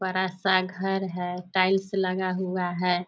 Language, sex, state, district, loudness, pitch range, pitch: Hindi, female, Bihar, Darbhanga, -26 LUFS, 180-190 Hz, 185 Hz